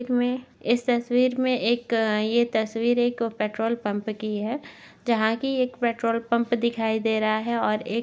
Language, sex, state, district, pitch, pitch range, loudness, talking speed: Hindi, female, Chhattisgarh, Jashpur, 235 Hz, 220-245 Hz, -25 LUFS, 180 wpm